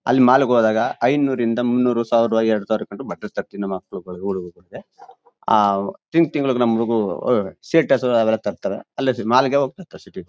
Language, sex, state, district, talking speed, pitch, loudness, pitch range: Kannada, male, Karnataka, Mysore, 180 wpm, 115 Hz, -19 LUFS, 105-130 Hz